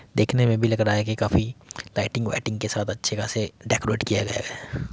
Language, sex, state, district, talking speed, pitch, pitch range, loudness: Hindi, male, Uttar Pradesh, Muzaffarnagar, 220 wpm, 110 Hz, 105-115 Hz, -24 LUFS